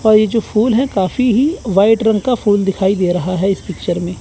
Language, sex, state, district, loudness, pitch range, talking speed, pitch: Hindi, male, Chandigarh, Chandigarh, -15 LUFS, 190-230 Hz, 255 wpm, 210 Hz